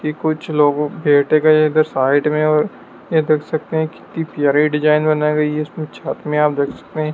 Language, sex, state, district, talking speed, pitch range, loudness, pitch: Hindi, male, Madhya Pradesh, Dhar, 220 wpm, 150-155 Hz, -17 LUFS, 150 Hz